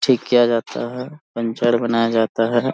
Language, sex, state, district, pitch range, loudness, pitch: Hindi, male, Jharkhand, Sahebganj, 115-125 Hz, -19 LUFS, 120 Hz